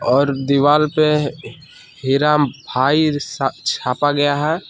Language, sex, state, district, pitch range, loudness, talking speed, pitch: Hindi, male, Jharkhand, Palamu, 140-150 Hz, -17 LUFS, 115 wpm, 145 Hz